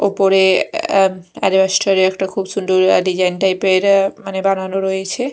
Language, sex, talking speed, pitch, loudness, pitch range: Bengali, female, 155 wpm, 190 Hz, -15 LUFS, 190-195 Hz